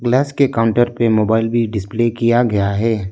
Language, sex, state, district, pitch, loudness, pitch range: Hindi, male, Arunachal Pradesh, Lower Dibang Valley, 115 Hz, -16 LUFS, 110-120 Hz